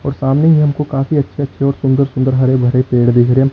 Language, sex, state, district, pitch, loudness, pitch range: Hindi, male, Chandigarh, Chandigarh, 135 Hz, -13 LUFS, 130-140 Hz